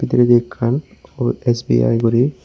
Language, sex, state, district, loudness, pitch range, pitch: Chakma, male, Tripura, West Tripura, -17 LUFS, 105-120 Hz, 120 Hz